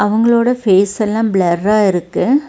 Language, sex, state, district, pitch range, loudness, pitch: Tamil, female, Tamil Nadu, Nilgiris, 195-230 Hz, -14 LUFS, 210 Hz